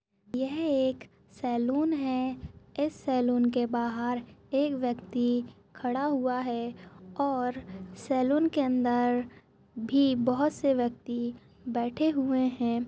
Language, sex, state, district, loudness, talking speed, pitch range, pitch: Hindi, female, Uttarakhand, Uttarkashi, -29 LUFS, 110 wpm, 240-270 Hz, 250 Hz